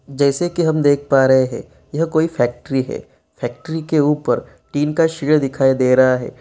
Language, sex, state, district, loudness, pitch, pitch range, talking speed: Hindi, male, Bihar, East Champaran, -17 LUFS, 145 Hz, 130-160 Hz, 195 wpm